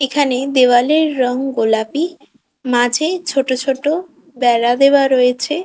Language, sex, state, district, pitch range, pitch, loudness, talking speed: Bengali, female, West Bengal, Kolkata, 250-300 Hz, 270 Hz, -15 LUFS, 105 wpm